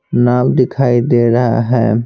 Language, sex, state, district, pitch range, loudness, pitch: Hindi, male, Bihar, Patna, 115-125 Hz, -13 LUFS, 120 Hz